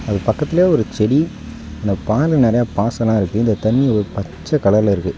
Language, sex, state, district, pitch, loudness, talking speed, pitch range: Tamil, male, Tamil Nadu, Nilgiris, 110 Hz, -17 LUFS, 175 wpm, 100-120 Hz